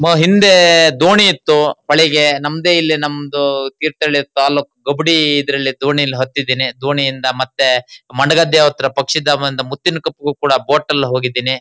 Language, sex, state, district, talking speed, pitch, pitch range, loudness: Kannada, male, Karnataka, Shimoga, 130 wpm, 145 Hz, 135-155 Hz, -13 LUFS